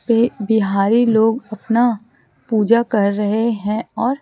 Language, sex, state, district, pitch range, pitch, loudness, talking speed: Hindi, female, Chhattisgarh, Raipur, 210-235 Hz, 225 Hz, -17 LUFS, 130 wpm